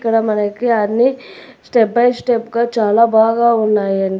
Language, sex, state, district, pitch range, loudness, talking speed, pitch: Telugu, female, Telangana, Hyderabad, 215-235 Hz, -15 LUFS, 145 wpm, 230 Hz